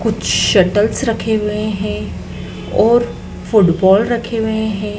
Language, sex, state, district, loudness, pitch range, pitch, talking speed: Hindi, female, Madhya Pradesh, Dhar, -15 LUFS, 205-225 Hz, 215 Hz, 120 wpm